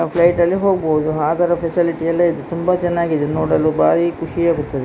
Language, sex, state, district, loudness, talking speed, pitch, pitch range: Kannada, female, Karnataka, Dakshina Kannada, -17 LUFS, 175 wpm, 170 Hz, 155-175 Hz